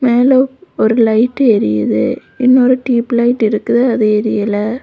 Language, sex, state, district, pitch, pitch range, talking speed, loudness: Tamil, female, Tamil Nadu, Kanyakumari, 235 Hz, 220-255 Hz, 110 wpm, -13 LUFS